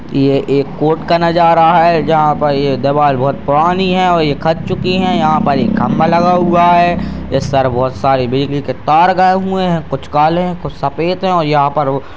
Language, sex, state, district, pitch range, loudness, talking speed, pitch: Hindi, male, Bihar, Purnia, 140-180 Hz, -12 LUFS, 230 wpm, 160 Hz